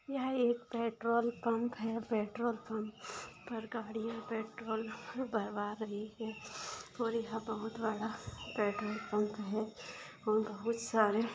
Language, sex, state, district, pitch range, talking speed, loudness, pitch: Hindi, female, Maharashtra, Dhule, 215-230 Hz, 120 wpm, -38 LUFS, 225 Hz